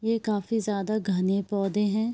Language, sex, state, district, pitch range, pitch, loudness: Hindi, female, Bihar, Araria, 200-220 Hz, 210 Hz, -27 LUFS